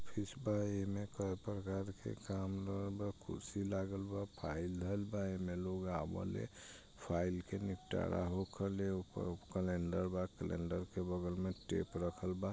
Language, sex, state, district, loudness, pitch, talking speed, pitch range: Bhojpuri, male, Bihar, East Champaran, -42 LUFS, 95 Hz, 150 wpm, 90-100 Hz